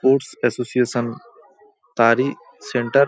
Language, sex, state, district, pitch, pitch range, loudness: Bengali, male, West Bengal, Paschim Medinipur, 125 Hz, 120-140 Hz, -20 LUFS